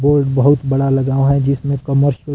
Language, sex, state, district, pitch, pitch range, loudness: Hindi, male, Himachal Pradesh, Shimla, 140 Hz, 135-140 Hz, -15 LUFS